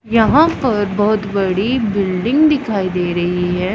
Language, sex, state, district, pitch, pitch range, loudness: Hindi, female, Punjab, Pathankot, 205 Hz, 185-230 Hz, -16 LUFS